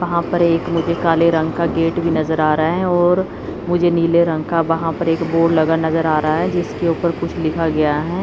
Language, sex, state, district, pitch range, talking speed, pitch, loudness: Hindi, female, Chandigarh, Chandigarh, 160-170 Hz, 240 wpm, 165 Hz, -17 LUFS